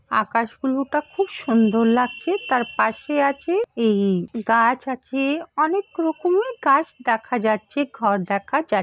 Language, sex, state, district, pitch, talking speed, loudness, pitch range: Bengali, female, West Bengal, Purulia, 265 Hz, 135 wpm, -21 LUFS, 225-305 Hz